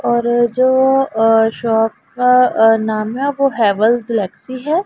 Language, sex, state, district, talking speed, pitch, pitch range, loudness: Hindi, female, Punjab, Pathankot, 150 wpm, 235 Hz, 225-260 Hz, -14 LUFS